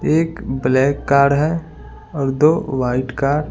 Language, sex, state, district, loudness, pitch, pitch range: Hindi, male, Bihar, Patna, -17 LUFS, 140 Hz, 135-155 Hz